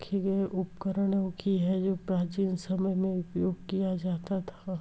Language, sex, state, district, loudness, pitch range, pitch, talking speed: Hindi, female, Uttar Pradesh, Etah, -31 LUFS, 185-195 Hz, 190 Hz, 135 wpm